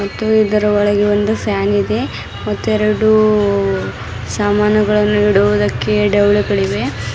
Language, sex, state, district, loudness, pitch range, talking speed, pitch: Kannada, female, Karnataka, Bidar, -15 LUFS, 200-210 Hz, 90 wpm, 205 Hz